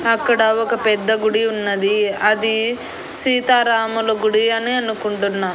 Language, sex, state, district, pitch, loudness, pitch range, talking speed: Telugu, female, Andhra Pradesh, Annamaya, 220 Hz, -17 LUFS, 215-230 Hz, 110 wpm